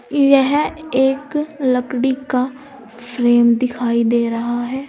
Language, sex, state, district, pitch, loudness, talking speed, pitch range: Hindi, female, Uttar Pradesh, Saharanpur, 255 Hz, -17 LUFS, 110 wpm, 240-275 Hz